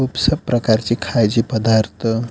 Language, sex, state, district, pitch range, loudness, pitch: Marathi, male, Maharashtra, Pune, 110-120 Hz, -17 LUFS, 115 Hz